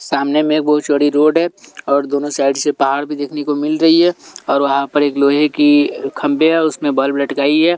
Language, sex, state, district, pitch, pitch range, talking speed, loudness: Hindi, male, Delhi, New Delhi, 145 Hz, 140-155 Hz, 215 wpm, -15 LUFS